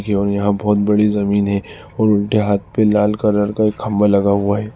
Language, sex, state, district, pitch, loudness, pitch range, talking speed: Hindi, male, Uttar Pradesh, Lalitpur, 105 Hz, -16 LUFS, 100-105 Hz, 200 wpm